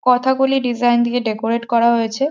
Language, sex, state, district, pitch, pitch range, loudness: Bengali, female, West Bengal, Jhargram, 240 Hz, 235-255 Hz, -17 LUFS